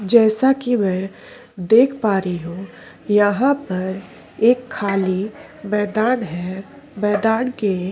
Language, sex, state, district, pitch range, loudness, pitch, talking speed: Hindi, female, Chhattisgarh, Korba, 190-240 Hz, -19 LUFS, 210 Hz, 115 wpm